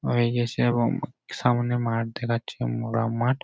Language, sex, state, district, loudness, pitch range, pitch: Bengali, male, West Bengal, Jhargram, -26 LUFS, 115-120 Hz, 120 Hz